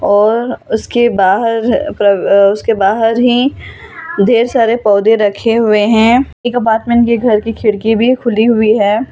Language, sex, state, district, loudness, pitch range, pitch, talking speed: Hindi, female, Delhi, New Delhi, -11 LUFS, 215-240 Hz, 225 Hz, 145 wpm